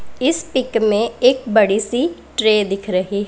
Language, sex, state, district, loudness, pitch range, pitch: Hindi, female, Punjab, Pathankot, -17 LUFS, 205-255 Hz, 220 Hz